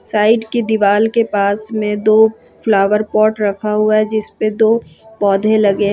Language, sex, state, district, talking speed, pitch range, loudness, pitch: Hindi, female, Jharkhand, Ranchi, 160 wpm, 205-220 Hz, -14 LUFS, 215 Hz